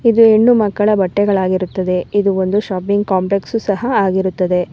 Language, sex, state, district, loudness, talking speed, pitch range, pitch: Kannada, female, Karnataka, Bangalore, -15 LUFS, 125 wpm, 185-210 Hz, 195 Hz